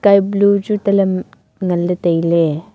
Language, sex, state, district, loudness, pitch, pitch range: Wancho, female, Arunachal Pradesh, Longding, -16 LUFS, 190 Hz, 175-200 Hz